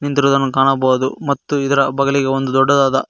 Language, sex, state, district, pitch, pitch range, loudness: Kannada, male, Karnataka, Koppal, 135 Hz, 135-140 Hz, -15 LUFS